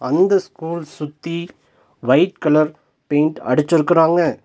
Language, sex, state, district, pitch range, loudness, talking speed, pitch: Tamil, male, Tamil Nadu, Nilgiris, 150-170 Hz, -18 LUFS, 95 wpm, 160 Hz